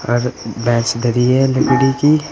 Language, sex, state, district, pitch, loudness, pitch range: Hindi, male, Uttar Pradesh, Saharanpur, 125 Hz, -15 LUFS, 120-140 Hz